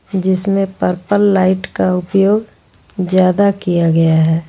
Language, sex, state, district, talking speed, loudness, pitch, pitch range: Hindi, female, Jharkhand, Ranchi, 120 wpm, -14 LUFS, 190 Hz, 180-195 Hz